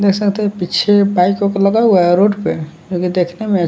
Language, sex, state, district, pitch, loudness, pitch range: Hindi, male, Bihar, West Champaran, 195 Hz, -14 LUFS, 180-205 Hz